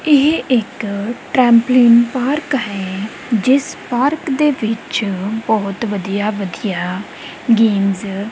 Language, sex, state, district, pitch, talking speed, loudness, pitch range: Punjabi, female, Punjab, Kapurthala, 225 Hz, 100 wpm, -16 LUFS, 200-255 Hz